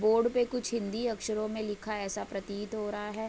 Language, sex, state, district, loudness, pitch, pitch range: Hindi, female, Uttar Pradesh, Budaun, -33 LUFS, 215 Hz, 210-230 Hz